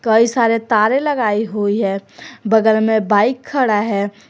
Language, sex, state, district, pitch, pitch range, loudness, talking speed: Hindi, female, Jharkhand, Garhwa, 220 Hz, 205-230 Hz, -16 LUFS, 155 wpm